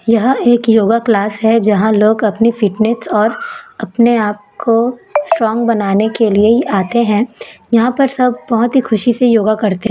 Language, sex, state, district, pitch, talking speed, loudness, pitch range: Hindi, female, Chhattisgarh, Raipur, 230 Hz, 175 wpm, -13 LUFS, 215-240 Hz